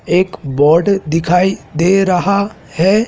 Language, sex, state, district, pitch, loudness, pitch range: Hindi, male, Madhya Pradesh, Dhar, 180 Hz, -14 LUFS, 165-195 Hz